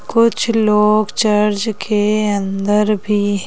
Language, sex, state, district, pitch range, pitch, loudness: Hindi, female, Madhya Pradesh, Bhopal, 205-215 Hz, 210 Hz, -15 LUFS